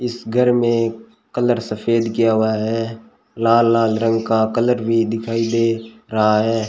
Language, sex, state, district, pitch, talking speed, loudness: Hindi, male, Rajasthan, Bikaner, 115 Hz, 160 wpm, -18 LUFS